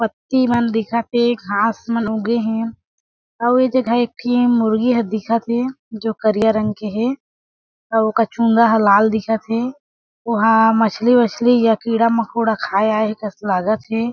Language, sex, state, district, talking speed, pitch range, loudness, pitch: Chhattisgarhi, female, Chhattisgarh, Jashpur, 170 wpm, 220-235 Hz, -17 LUFS, 225 Hz